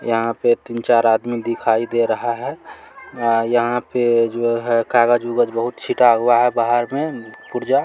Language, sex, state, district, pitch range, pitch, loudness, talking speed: Maithili, male, Bihar, Supaul, 115-120 Hz, 120 Hz, -18 LUFS, 170 wpm